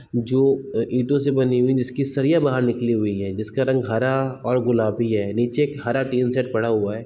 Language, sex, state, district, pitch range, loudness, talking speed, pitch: Hindi, male, Bihar, East Champaran, 115-135 Hz, -21 LUFS, 210 wpm, 125 Hz